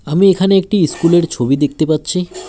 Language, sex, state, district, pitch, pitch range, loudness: Bengali, male, West Bengal, Alipurduar, 170 Hz, 155-190 Hz, -14 LUFS